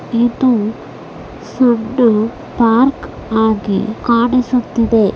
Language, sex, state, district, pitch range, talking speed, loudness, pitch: Kannada, female, Karnataka, Bellary, 220-245 Hz, 45 wpm, -14 LUFS, 230 Hz